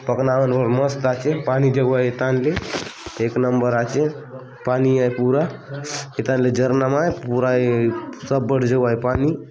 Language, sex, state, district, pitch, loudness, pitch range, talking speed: Halbi, male, Chhattisgarh, Bastar, 130 Hz, -20 LUFS, 125-135 Hz, 165 wpm